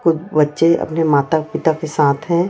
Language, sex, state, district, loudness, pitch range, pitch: Hindi, female, Chhattisgarh, Raipur, -16 LUFS, 150-165 Hz, 160 Hz